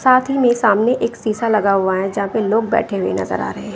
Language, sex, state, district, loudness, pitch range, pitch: Hindi, female, Bihar, West Champaran, -17 LUFS, 195-230 Hz, 215 Hz